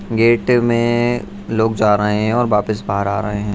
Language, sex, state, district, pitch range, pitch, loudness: Hindi, male, Bihar, Saharsa, 105-120 Hz, 110 Hz, -16 LUFS